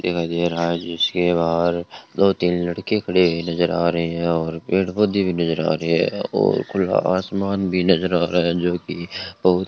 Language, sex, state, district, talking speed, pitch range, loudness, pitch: Hindi, male, Rajasthan, Bikaner, 210 wpm, 85-95 Hz, -20 LUFS, 85 Hz